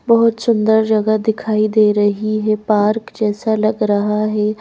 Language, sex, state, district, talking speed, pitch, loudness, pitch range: Hindi, female, Madhya Pradesh, Bhopal, 155 wpm, 215 Hz, -16 LUFS, 210-220 Hz